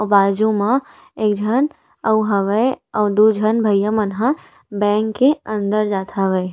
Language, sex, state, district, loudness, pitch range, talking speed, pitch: Chhattisgarhi, female, Chhattisgarh, Rajnandgaon, -18 LUFS, 205-220 Hz, 165 wpm, 210 Hz